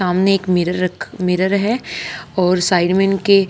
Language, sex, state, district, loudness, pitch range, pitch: Hindi, female, Haryana, Charkhi Dadri, -17 LUFS, 180-195 Hz, 185 Hz